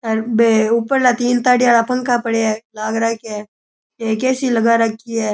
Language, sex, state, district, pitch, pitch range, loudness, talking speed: Rajasthani, male, Rajasthan, Churu, 230 Hz, 220-245 Hz, -16 LUFS, 190 wpm